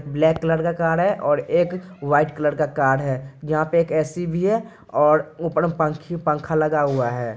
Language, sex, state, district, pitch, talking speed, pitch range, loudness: Hindi, male, Bihar, Purnia, 155 Hz, 205 wpm, 145-165 Hz, -21 LUFS